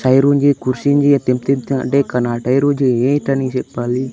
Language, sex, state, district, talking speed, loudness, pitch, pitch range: Telugu, male, Andhra Pradesh, Manyam, 115 wpm, -16 LUFS, 135 Hz, 125-140 Hz